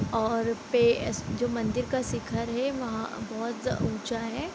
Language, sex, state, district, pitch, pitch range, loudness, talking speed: Hindi, female, Bihar, Gopalganj, 235 Hz, 225-250 Hz, -29 LUFS, 160 wpm